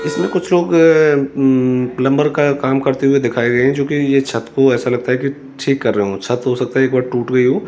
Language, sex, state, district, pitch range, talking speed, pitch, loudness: Hindi, male, Rajasthan, Jaipur, 125-140 Hz, 260 wpm, 135 Hz, -15 LUFS